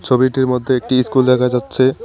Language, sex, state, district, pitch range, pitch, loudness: Bengali, male, West Bengal, Cooch Behar, 125-130 Hz, 130 Hz, -15 LUFS